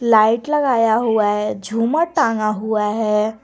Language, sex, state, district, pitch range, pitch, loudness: Hindi, female, Jharkhand, Garhwa, 215-235 Hz, 220 Hz, -18 LUFS